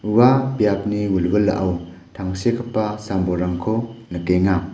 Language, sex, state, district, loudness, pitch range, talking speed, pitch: Garo, male, Meghalaya, West Garo Hills, -20 LUFS, 90-110 Hz, 75 wpm, 100 Hz